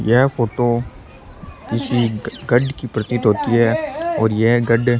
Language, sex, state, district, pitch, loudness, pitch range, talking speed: Rajasthani, male, Rajasthan, Churu, 120 Hz, -18 LUFS, 115-125 Hz, 145 wpm